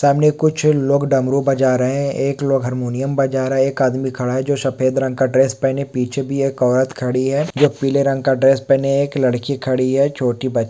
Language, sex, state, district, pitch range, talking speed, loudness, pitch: Hindi, male, West Bengal, Malda, 130-140 Hz, 230 wpm, -17 LUFS, 135 Hz